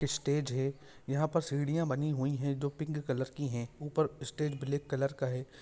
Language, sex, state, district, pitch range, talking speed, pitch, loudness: Hindi, male, Chhattisgarh, Bastar, 135-150 Hz, 205 wpm, 140 Hz, -34 LUFS